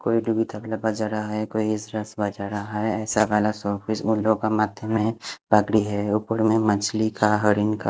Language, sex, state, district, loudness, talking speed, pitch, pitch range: Hindi, male, Haryana, Rohtak, -23 LUFS, 175 wpm, 110 Hz, 105-110 Hz